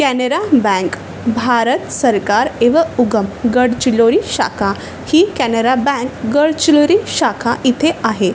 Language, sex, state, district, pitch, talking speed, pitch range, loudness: Marathi, female, Maharashtra, Chandrapur, 250 Hz, 110 wpm, 235-295 Hz, -14 LUFS